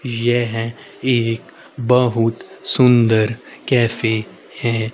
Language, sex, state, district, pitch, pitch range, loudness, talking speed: Hindi, male, Haryana, Rohtak, 115 Hz, 115-120 Hz, -17 LUFS, 75 wpm